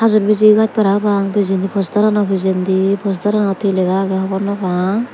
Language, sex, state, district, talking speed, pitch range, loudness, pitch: Chakma, female, Tripura, Dhalai, 165 wpm, 190-210 Hz, -15 LUFS, 200 Hz